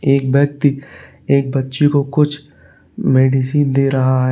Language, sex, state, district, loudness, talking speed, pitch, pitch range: Hindi, male, Uttar Pradesh, Lalitpur, -15 LUFS, 140 wpm, 140 Hz, 130-145 Hz